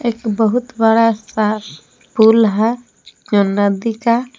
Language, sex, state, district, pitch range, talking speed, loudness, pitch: Hindi, female, Jharkhand, Palamu, 215-235 Hz, 125 wpm, -15 LUFS, 225 Hz